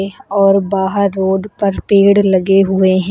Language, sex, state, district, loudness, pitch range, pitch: Hindi, female, Uttar Pradesh, Lucknow, -13 LUFS, 190-200 Hz, 195 Hz